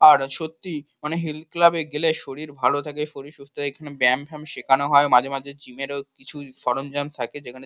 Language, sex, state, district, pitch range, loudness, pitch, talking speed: Bengali, male, West Bengal, Kolkata, 135-150 Hz, -20 LUFS, 145 Hz, 210 wpm